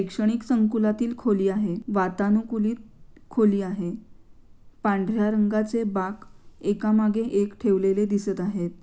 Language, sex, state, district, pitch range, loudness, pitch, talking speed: Marathi, female, Maharashtra, Pune, 195-220 Hz, -24 LUFS, 210 Hz, 110 wpm